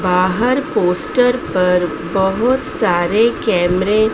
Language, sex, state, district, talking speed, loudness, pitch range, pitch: Hindi, female, Madhya Pradesh, Dhar, 100 wpm, -16 LUFS, 180-240 Hz, 190 Hz